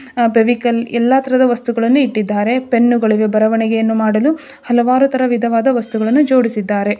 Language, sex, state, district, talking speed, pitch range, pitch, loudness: Kannada, female, Karnataka, Dharwad, 120 wpm, 225-255 Hz, 235 Hz, -14 LUFS